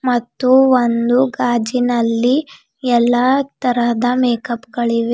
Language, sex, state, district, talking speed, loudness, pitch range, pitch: Kannada, female, Karnataka, Bidar, 80 wpm, -16 LUFS, 235-255 Hz, 245 Hz